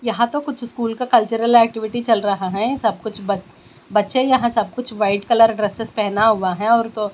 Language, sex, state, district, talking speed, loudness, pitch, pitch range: Hindi, female, Bihar, West Champaran, 210 wpm, -18 LUFS, 225 Hz, 210-235 Hz